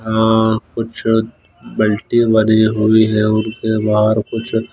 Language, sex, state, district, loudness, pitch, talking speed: Hindi, male, Punjab, Fazilka, -15 LUFS, 110 Hz, 115 wpm